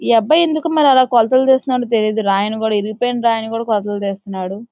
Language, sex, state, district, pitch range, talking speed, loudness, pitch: Telugu, female, Andhra Pradesh, Guntur, 210-255 Hz, 190 wpm, -16 LUFS, 230 Hz